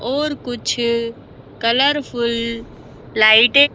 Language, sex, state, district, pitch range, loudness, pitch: Hindi, female, Madhya Pradesh, Bhopal, 230-280 Hz, -16 LUFS, 235 Hz